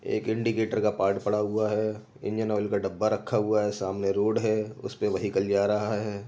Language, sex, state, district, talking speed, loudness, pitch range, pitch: Hindi, male, Uttar Pradesh, Jyotiba Phule Nagar, 210 wpm, -27 LUFS, 100-110 Hz, 105 Hz